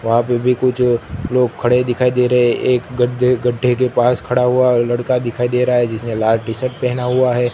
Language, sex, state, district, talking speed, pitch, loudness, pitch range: Hindi, male, Gujarat, Gandhinagar, 230 wpm, 125 Hz, -16 LUFS, 120-125 Hz